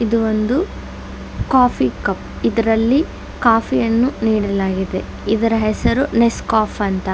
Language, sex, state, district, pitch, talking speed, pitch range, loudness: Kannada, female, Karnataka, Dakshina Kannada, 225 Hz, 110 wpm, 215-235 Hz, -17 LUFS